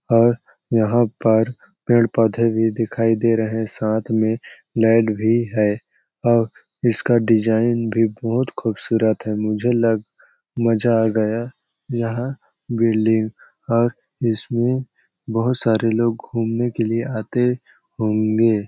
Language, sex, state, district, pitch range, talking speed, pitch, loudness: Hindi, male, Chhattisgarh, Balrampur, 110-120 Hz, 130 wpm, 115 Hz, -20 LUFS